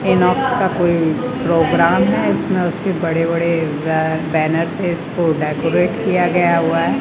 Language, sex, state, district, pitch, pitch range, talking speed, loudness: Hindi, male, Rajasthan, Jaipur, 170 Hz, 160-180 Hz, 155 wpm, -16 LUFS